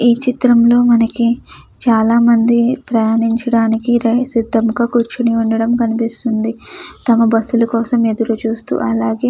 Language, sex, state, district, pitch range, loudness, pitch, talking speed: Telugu, female, Andhra Pradesh, Chittoor, 225-240 Hz, -14 LUFS, 230 Hz, 105 wpm